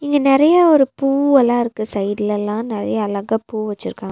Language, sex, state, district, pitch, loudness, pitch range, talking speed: Tamil, female, Tamil Nadu, Nilgiris, 230 Hz, -17 LUFS, 210-275 Hz, 130 wpm